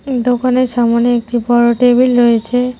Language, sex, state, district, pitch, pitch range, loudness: Bengali, female, West Bengal, Cooch Behar, 245 Hz, 240-250 Hz, -12 LUFS